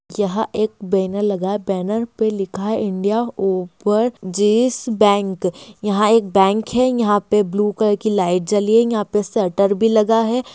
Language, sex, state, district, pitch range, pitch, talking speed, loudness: Hindi, female, Bihar, Kishanganj, 195-220 Hz, 210 Hz, 175 wpm, -18 LUFS